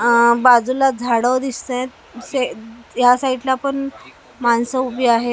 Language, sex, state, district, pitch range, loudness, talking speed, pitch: Marathi, female, Maharashtra, Mumbai Suburban, 235-260 Hz, -17 LUFS, 145 wpm, 250 Hz